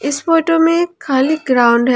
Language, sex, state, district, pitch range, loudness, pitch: Hindi, female, Jharkhand, Ranchi, 260-330 Hz, -14 LUFS, 295 Hz